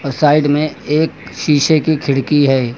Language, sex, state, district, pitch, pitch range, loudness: Hindi, male, Uttar Pradesh, Lucknow, 145 Hz, 135-155 Hz, -14 LUFS